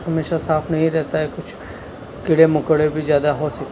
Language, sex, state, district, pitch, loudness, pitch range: Hindi, male, Punjab, Kapurthala, 155 Hz, -18 LUFS, 150-160 Hz